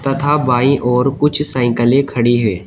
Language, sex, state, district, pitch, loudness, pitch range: Hindi, male, Uttar Pradesh, Shamli, 130 Hz, -14 LUFS, 120-140 Hz